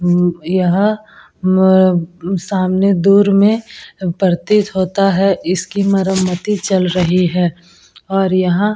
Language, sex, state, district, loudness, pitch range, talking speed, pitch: Hindi, female, Uttar Pradesh, Etah, -14 LUFS, 180-195 Hz, 110 wpm, 185 Hz